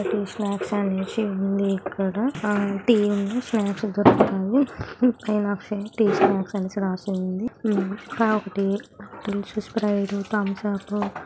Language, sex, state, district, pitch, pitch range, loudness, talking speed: Telugu, female, Andhra Pradesh, Guntur, 205 Hz, 195-215 Hz, -24 LUFS, 135 wpm